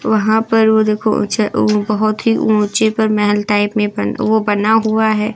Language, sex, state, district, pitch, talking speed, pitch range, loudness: Hindi, female, Uttar Pradesh, Lucknow, 215 Hz, 190 wpm, 210-220 Hz, -14 LUFS